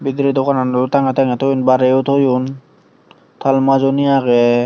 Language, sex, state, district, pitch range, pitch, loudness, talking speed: Chakma, male, Tripura, Dhalai, 130-135 Hz, 135 Hz, -14 LUFS, 130 wpm